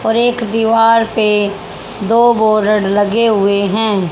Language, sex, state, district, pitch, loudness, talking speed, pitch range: Hindi, female, Haryana, Charkhi Dadri, 220 Hz, -12 LUFS, 130 wpm, 205-225 Hz